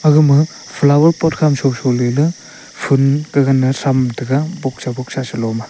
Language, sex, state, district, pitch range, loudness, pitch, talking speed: Wancho, male, Arunachal Pradesh, Longding, 130-150 Hz, -15 LUFS, 135 Hz, 190 wpm